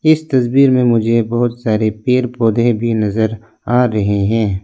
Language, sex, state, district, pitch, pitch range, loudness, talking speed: Hindi, male, Arunachal Pradesh, Lower Dibang Valley, 115 Hz, 110-125 Hz, -15 LUFS, 170 wpm